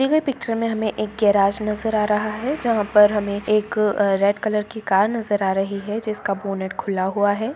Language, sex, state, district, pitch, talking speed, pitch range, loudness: Hindi, female, Bihar, Gaya, 210 Hz, 220 wpm, 200-220 Hz, -21 LUFS